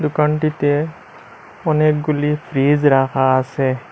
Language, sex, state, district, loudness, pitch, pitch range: Bengali, male, Assam, Hailakandi, -17 LUFS, 150 Hz, 135-155 Hz